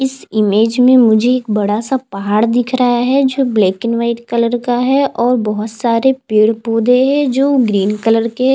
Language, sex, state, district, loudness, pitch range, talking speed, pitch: Hindi, female, Chhattisgarh, Jashpur, -13 LUFS, 220-255 Hz, 210 wpm, 235 Hz